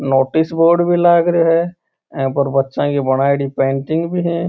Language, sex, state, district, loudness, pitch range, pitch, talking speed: Marwari, male, Rajasthan, Churu, -15 LUFS, 135-170 Hz, 160 Hz, 185 wpm